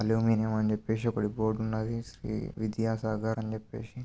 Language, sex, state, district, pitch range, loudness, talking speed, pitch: Telugu, male, Andhra Pradesh, Krishna, 110-115 Hz, -31 LUFS, 150 wpm, 110 Hz